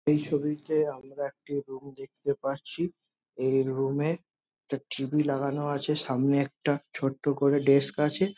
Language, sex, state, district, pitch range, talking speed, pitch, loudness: Bengali, male, West Bengal, Jhargram, 135-150 Hz, 150 wpm, 140 Hz, -29 LUFS